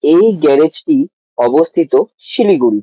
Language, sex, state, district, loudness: Bengali, male, West Bengal, Jalpaiguri, -12 LUFS